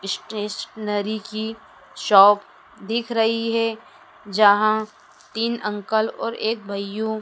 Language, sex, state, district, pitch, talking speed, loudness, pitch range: Hindi, female, Madhya Pradesh, Dhar, 220 Hz, 100 wpm, -21 LUFS, 205-225 Hz